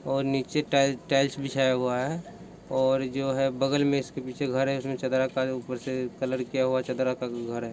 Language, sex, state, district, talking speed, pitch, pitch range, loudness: Hindi, male, Bihar, East Champaran, 215 wpm, 130 Hz, 130-135 Hz, -27 LUFS